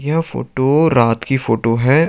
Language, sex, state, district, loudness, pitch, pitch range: Hindi, male, Uttar Pradesh, Lucknow, -15 LUFS, 135 Hz, 115-160 Hz